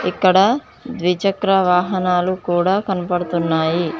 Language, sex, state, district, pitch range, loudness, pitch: Telugu, female, Telangana, Mahabubabad, 175-195 Hz, -17 LUFS, 180 Hz